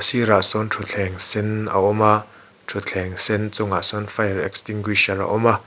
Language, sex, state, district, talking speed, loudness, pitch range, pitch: Mizo, male, Mizoram, Aizawl, 170 wpm, -20 LUFS, 100-110 Hz, 105 Hz